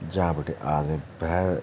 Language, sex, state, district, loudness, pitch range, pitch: Garhwali, male, Uttarakhand, Tehri Garhwal, -27 LUFS, 75-90 Hz, 80 Hz